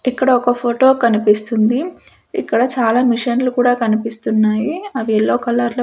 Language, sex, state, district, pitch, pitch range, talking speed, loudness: Telugu, female, Andhra Pradesh, Sri Satya Sai, 240 Hz, 225-255 Hz, 135 wpm, -16 LUFS